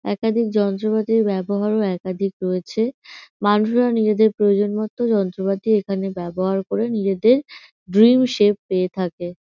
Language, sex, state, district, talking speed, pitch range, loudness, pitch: Bengali, female, West Bengal, North 24 Parganas, 115 wpm, 195-220 Hz, -19 LUFS, 205 Hz